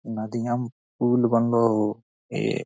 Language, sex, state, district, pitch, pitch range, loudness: Hindi, male, Jharkhand, Jamtara, 115 Hz, 110-120 Hz, -24 LUFS